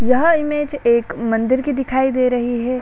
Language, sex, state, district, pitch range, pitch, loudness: Hindi, female, Bihar, Saran, 240-285 Hz, 255 Hz, -18 LUFS